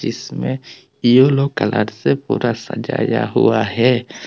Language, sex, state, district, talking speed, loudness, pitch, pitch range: Hindi, male, Tripura, West Tripura, 110 wpm, -17 LUFS, 120 Hz, 110-130 Hz